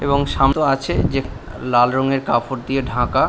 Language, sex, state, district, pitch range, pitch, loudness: Bengali, male, West Bengal, Paschim Medinipur, 125-135 Hz, 130 Hz, -18 LUFS